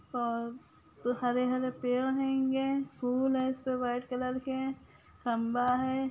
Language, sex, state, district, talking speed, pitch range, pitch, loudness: Magahi, female, Bihar, Lakhisarai, 120 wpm, 245-265 Hz, 255 Hz, -32 LUFS